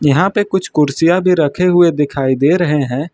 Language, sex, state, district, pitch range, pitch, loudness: Hindi, male, Uttar Pradesh, Lucknow, 145-180 Hz, 155 Hz, -13 LUFS